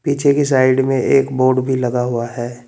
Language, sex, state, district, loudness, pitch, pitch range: Hindi, male, Uttar Pradesh, Saharanpur, -16 LUFS, 130 Hz, 125-135 Hz